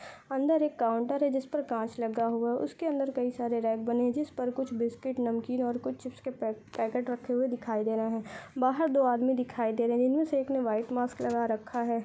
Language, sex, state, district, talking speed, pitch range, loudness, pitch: Hindi, female, Uttar Pradesh, Budaun, 250 wpm, 230-260 Hz, -30 LUFS, 245 Hz